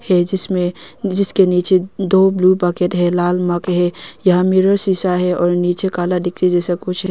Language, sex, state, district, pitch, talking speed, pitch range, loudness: Hindi, female, Arunachal Pradesh, Longding, 180 Hz, 175 wpm, 175-190 Hz, -15 LUFS